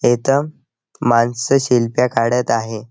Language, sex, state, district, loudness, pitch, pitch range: Marathi, male, Maharashtra, Chandrapur, -17 LUFS, 120 Hz, 115-130 Hz